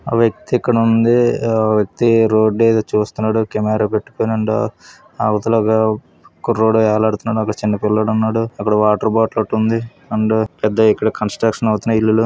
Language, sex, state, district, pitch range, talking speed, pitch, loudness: Telugu, male, Andhra Pradesh, Visakhapatnam, 110-115 Hz, 140 wpm, 110 Hz, -16 LUFS